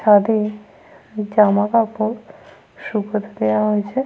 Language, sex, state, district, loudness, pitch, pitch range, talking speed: Bengali, female, Jharkhand, Sahebganj, -19 LUFS, 210 Hz, 205-220 Hz, 75 wpm